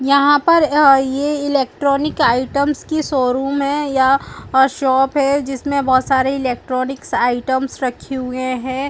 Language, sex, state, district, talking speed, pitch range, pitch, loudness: Hindi, female, Chhattisgarh, Balrampur, 130 wpm, 260-285 Hz, 270 Hz, -16 LUFS